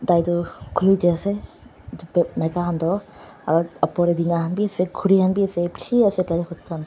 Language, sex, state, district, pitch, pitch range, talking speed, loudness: Nagamese, female, Nagaland, Dimapur, 175 Hz, 170-190 Hz, 175 wpm, -21 LUFS